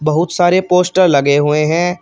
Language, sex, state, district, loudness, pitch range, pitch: Hindi, male, Uttar Pradesh, Shamli, -13 LUFS, 150-180 Hz, 175 Hz